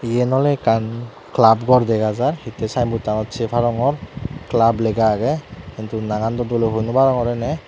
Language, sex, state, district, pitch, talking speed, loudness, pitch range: Chakma, male, Tripura, Dhalai, 115 Hz, 190 wpm, -19 LUFS, 110-125 Hz